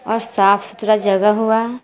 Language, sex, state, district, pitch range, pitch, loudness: Hindi, female, Jharkhand, Garhwa, 200-225 Hz, 215 Hz, -16 LUFS